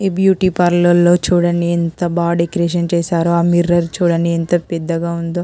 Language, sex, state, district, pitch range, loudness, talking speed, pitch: Telugu, female, Andhra Pradesh, Anantapur, 170-175 Hz, -15 LUFS, 175 wpm, 175 Hz